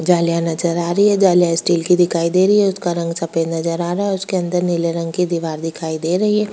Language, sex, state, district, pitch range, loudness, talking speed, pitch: Hindi, female, Bihar, Kishanganj, 165-185 Hz, -17 LUFS, 265 wpm, 175 Hz